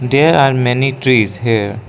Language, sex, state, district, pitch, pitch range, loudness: English, male, Arunachal Pradesh, Lower Dibang Valley, 125 Hz, 110-135 Hz, -13 LUFS